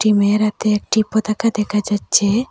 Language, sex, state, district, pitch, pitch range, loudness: Bengali, female, Assam, Hailakandi, 210 Hz, 210-220 Hz, -17 LUFS